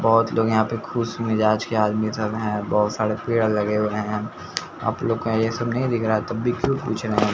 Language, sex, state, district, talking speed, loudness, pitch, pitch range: Hindi, male, Bihar, Patna, 235 wpm, -23 LUFS, 110 Hz, 105-115 Hz